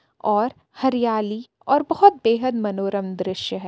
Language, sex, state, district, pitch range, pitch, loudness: Hindi, female, Jharkhand, Palamu, 200-265 Hz, 225 Hz, -21 LUFS